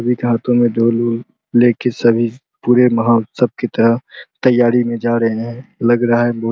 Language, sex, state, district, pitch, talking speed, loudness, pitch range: Hindi, male, Bihar, Araria, 120 Hz, 200 wpm, -15 LUFS, 115-120 Hz